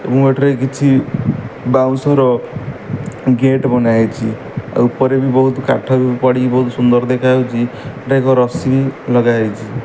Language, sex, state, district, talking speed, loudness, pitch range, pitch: Odia, male, Odisha, Malkangiri, 120 wpm, -14 LUFS, 125-135 Hz, 130 Hz